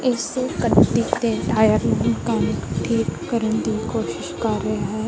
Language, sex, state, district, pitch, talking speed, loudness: Punjabi, female, Punjab, Kapurthala, 220 Hz, 155 wpm, -21 LUFS